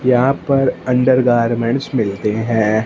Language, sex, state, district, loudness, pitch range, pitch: Hindi, male, Punjab, Fazilka, -16 LUFS, 110-130 Hz, 125 Hz